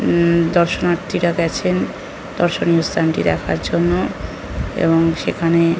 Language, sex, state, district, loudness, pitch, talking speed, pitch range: Bengali, female, West Bengal, North 24 Parganas, -18 LUFS, 165 Hz, 105 wpm, 135-170 Hz